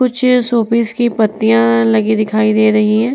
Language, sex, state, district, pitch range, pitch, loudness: Hindi, female, Uttar Pradesh, Muzaffarnagar, 215-235 Hz, 220 Hz, -13 LUFS